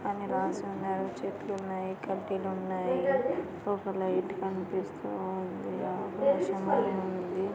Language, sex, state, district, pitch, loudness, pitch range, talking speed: Telugu, female, Andhra Pradesh, Anantapur, 190 Hz, -32 LUFS, 185-195 Hz, 85 wpm